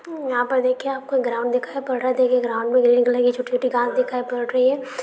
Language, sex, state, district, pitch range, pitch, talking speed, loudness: Maithili, female, Bihar, Supaul, 245-260 Hz, 250 Hz, 260 wpm, -21 LUFS